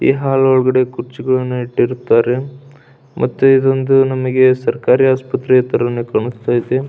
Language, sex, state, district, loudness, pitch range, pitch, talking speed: Kannada, male, Karnataka, Belgaum, -14 LUFS, 125-135 Hz, 130 Hz, 105 wpm